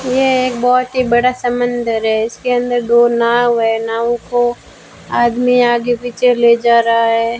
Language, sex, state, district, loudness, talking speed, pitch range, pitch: Hindi, female, Rajasthan, Bikaner, -14 LUFS, 180 wpm, 235-245 Hz, 240 Hz